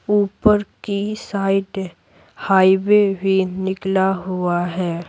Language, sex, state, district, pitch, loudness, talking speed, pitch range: Hindi, female, Bihar, Patna, 195 Hz, -19 LUFS, 95 wpm, 185-200 Hz